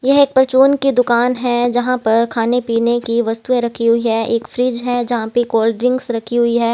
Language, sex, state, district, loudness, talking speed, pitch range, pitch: Hindi, female, Haryana, Jhajjar, -15 LUFS, 225 wpm, 230-250 Hz, 240 Hz